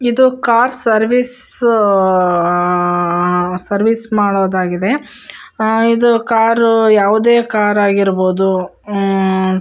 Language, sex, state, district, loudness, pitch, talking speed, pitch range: Kannada, female, Karnataka, Shimoga, -13 LUFS, 210 Hz, 80 wpm, 185-230 Hz